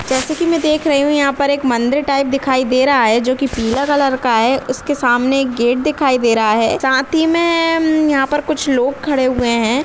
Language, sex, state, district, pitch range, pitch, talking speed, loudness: Bhojpuri, female, Uttar Pradesh, Deoria, 250-295 Hz, 270 Hz, 245 wpm, -15 LUFS